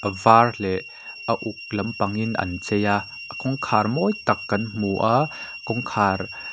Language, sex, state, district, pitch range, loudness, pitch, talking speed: Mizo, male, Mizoram, Aizawl, 100-115 Hz, -23 LUFS, 110 Hz, 165 wpm